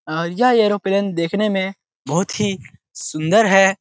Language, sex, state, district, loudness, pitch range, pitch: Hindi, male, Bihar, Araria, -18 LUFS, 170-205 Hz, 195 Hz